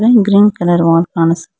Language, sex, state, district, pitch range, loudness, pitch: Kannada, female, Karnataka, Bangalore, 165-205 Hz, -11 LUFS, 175 Hz